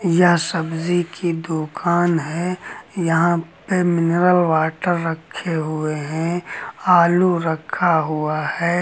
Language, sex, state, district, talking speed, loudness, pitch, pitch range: Hindi, male, Uttar Pradesh, Lucknow, 110 wpm, -19 LUFS, 170 Hz, 160-175 Hz